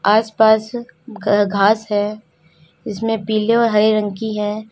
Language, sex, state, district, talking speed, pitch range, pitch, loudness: Hindi, female, Uttar Pradesh, Lalitpur, 150 wpm, 205-220 Hz, 215 Hz, -17 LUFS